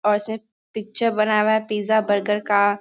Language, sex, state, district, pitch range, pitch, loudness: Hindi, female, Bihar, Sitamarhi, 205-220 Hz, 215 Hz, -21 LUFS